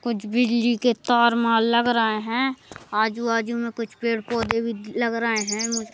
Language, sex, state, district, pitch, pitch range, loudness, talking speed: Hindi, male, Madhya Pradesh, Bhopal, 230 Hz, 225-235 Hz, -22 LUFS, 170 wpm